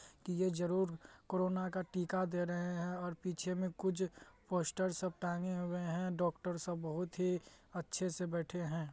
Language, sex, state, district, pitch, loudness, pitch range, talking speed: Hindi, male, Bihar, Madhepura, 180 Hz, -39 LUFS, 175-185 Hz, 175 wpm